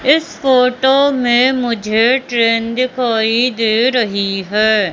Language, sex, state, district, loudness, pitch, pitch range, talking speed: Hindi, female, Madhya Pradesh, Katni, -14 LUFS, 240 Hz, 220-255 Hz, 110 wpm